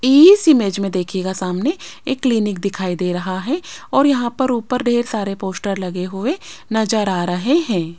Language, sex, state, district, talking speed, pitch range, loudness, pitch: Hindi, female, Rajasthan, Jaipur, 180 wpm, 185-260 Hz, -18 LUFS, 210 Hz